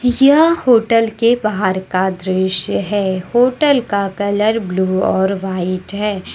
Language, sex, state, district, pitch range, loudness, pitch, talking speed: Hindi, female, Jharkhand, Deoghar, 190-235 Hz, -15 LUFS, 205 Hz, 130 wpm